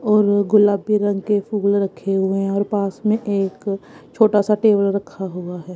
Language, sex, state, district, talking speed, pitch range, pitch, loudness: Hindi, female, Punjab, Kapurthala, 185 wpm, 195-210 Hz, 200 Hz, -19 LUFS